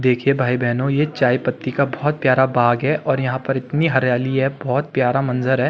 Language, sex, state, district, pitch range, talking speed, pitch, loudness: Hindi, male, Uttarakhand, Tehri Garhwal, 125-140 Hz, 200 wpm, 130 Hz, -19 LUFS